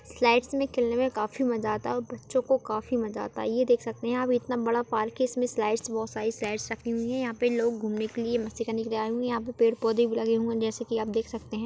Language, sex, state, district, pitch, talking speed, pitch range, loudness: Hindi, female, Chhattisgarh, Jashpur, 230 Hz, 295 wpm, 225-245 Hz, -28 LUFS